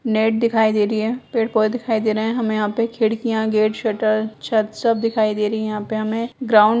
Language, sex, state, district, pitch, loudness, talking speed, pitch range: Hindi, female, Bihar, Purnia, 220 Hz, -19 LUFS, 240 wpm, 215-230 Hz